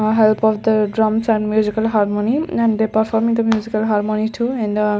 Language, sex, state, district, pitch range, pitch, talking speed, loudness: English, female, Chandigarh, Chandigarh, 215-225 Hz, 220 Hz, 205 wpm, -17 LUFS